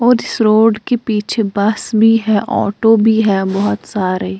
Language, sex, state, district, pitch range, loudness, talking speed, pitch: Hindi, female, Bihar, Katihar, 205-225 Hz, -14 LUFS, 190 wpm, 220 Hz